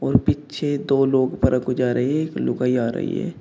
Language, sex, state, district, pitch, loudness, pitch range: Hindi, male, Uttar Pradesh, Shamli, 130 Hz, -21 LUFS, 125-145 Hz